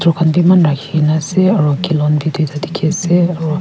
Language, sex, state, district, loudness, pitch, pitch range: Nagamese, female, Nagaland, Kohima, -14 LUFS, 160 Hz, 155-175 Hz